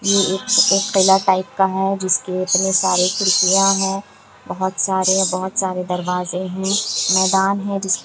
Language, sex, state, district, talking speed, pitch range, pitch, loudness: Hindi, female, Bihar, Kishanganj, 165 wpm, 185-195 Hz, 190 Hz, -17 LUFS